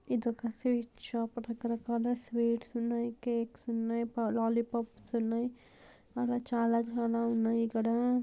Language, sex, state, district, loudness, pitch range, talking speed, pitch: Telugu, female, Andhra Pradesh, Anantapur, -33 LUFS, 230-240 Hz, 115 wpm, 235 Hz